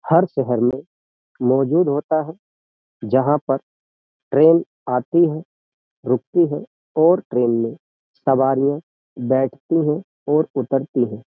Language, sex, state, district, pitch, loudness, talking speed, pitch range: Hindi, male, Uttar Pradesh, Jyotiba Phule Nagar, 135 Hz, -19 LUFS, 115 wpm, 125-155 Hz